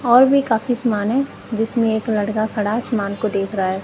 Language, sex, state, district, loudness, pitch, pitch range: Hindi, female, Punjab, Kapurthala, -19 LUFS, 220 Hz, 205-240 Hz